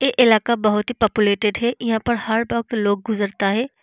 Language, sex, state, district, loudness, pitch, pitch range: Hindi, female, Bihar, Vaishali, -19 LUFS, 225 Hz, 210-235 Hz